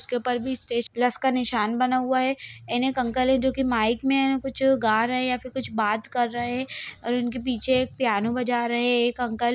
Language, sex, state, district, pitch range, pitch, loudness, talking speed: Hindi, female, Bihar, Gaya, 240-260 Hz, 245 Hz, -24 LUFS, 240 wpm